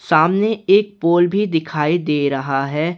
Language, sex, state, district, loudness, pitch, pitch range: Hindi, male, Jharkhand, Garhwa, -17 LUFS, 165 Hz, 150-190 Hz